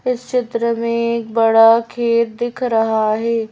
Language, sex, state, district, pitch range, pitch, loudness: Hindi, female, Madhya Pradesh, Bhopal, 225-240 Hz, 230 Hz, -16 LUFS